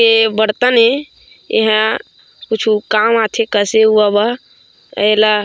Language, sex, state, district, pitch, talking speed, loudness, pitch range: Chhattisgarhi, female, Chhattisgarh, Korba, 220 Hz, 130 wpm, -13 LUFS, 215-230 Hz